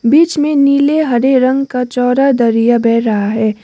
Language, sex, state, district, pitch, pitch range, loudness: Hindi, female, Sikkim, Gangtok, 250 Hz, 230-280 Hz, -12 LUFS